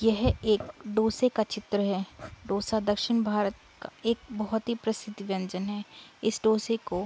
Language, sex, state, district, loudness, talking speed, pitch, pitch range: Hindi, female, Uttar Pradesh, Budaun, -29 LUFS, 170 wpm, 215 Hz, 205-225 Hz